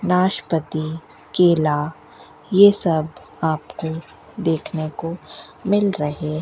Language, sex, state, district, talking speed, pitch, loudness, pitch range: Hindi, female, Rajasthan, Bikaner, 95 wpm, 160 Hz, -20 LUFS, 155-180 Hz